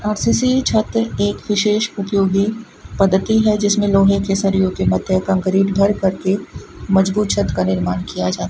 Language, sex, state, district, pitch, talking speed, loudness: Hindi, female, Rajasthan, Bikaner, 190 Hz, 170 wpm, -17 LUFS